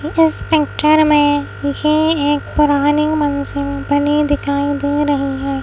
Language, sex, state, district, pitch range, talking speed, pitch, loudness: Hindi, female, Madhya Pradesh, Bhopal, 285-300 Hz, 130 wpm, 290 Hz, -15 LUFS